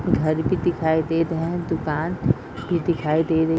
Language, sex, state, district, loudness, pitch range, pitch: Hindi, female, Bihar, Madhepura, -23 LUFS, 155-170 Hz, 160 Hz